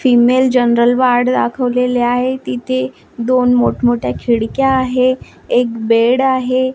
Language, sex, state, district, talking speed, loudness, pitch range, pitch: Marathi, female, Maharashtra, Washim, 115 wpm, -14 LUFS, 240-255 Hz, 245 Hz